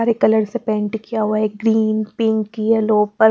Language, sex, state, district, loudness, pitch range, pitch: Hindi, female, Chandigarh, Chandigarh, -18 LUFS, 215-225 Hz, 220 Hz